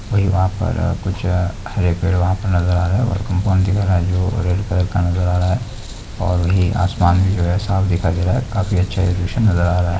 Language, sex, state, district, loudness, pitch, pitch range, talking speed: Hindi, male, West Bengal, Kolkata, -18 LUFS, 95 Hz, 90-100 Hz, 245 wpm